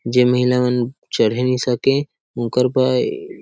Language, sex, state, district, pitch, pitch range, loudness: Chhattisgarhi, male, Chhattisgarh, Sarguja, 125 Hz, 125-135 Hz, -18 LUFS